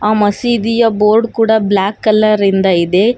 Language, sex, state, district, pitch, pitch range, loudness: Kannada, female, Karnataka, Bangalore, 215 Hz, 200-225 Hz, -12 LUFS